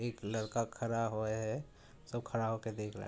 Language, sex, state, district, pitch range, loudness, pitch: Hindi, male, Uttar Pradesh, Budaun, 110-115 Hz, -38 LUFS, 115 Hz